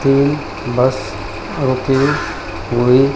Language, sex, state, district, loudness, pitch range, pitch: Hindi, male, Haryana, Jhajjar, -17 LUFS, 110-135 Hz, 130 Hz